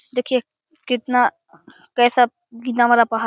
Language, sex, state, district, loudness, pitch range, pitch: Hindi, male, Bihar, Begusarai, -19 LUFS, 240-255 Hz, 245 Hz